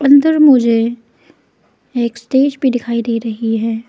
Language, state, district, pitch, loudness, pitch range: Hindi, Arunachal Pradesh, Lower Dibang Valley, 235 Hz, -14 LUFS, 230-265 Hz